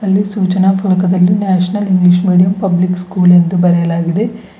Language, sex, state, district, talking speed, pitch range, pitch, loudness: Kannada, female, Karnataka, Bidar, 130 wpm, 180-195 Hz, 185 Hz, -12 LUFS